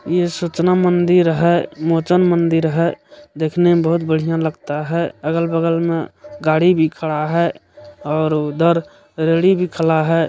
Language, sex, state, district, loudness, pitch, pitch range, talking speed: Hindi, male, Bihar, Supaul, -17 LUFS, 165 Hz, 160-175 Hz, 145 wpm